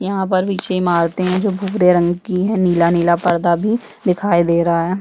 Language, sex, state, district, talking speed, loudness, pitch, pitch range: Hindi, female, Chhattisgarh, Bastar, 225 wpm, -16 LUFS, 180 Hz, 170-190 Hz